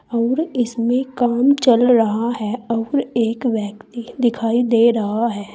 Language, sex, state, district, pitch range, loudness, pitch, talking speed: Hindi, female, Uttar Pradesh, Saharanpur, 225-245 Hz, -18 LUFS, 235 Hz, 140 wpm